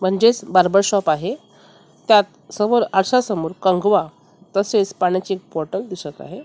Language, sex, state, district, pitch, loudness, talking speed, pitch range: Marathi, female, Maharashtra, Mumbai Suburban, 195 Hz, -18 LUFS, 130 wpm, 185-210 Hz